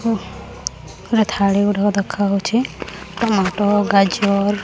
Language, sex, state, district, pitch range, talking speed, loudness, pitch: Odia, male, Odisha, Khordha, 200-210 Hz, 80 wpm, -18 LUFS, 205 Hz